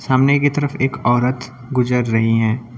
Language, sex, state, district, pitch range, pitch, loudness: Hindi, male, Uttar Pradesh, Lucknow, 120-135 Hz, 125 Hz, -17 LUFS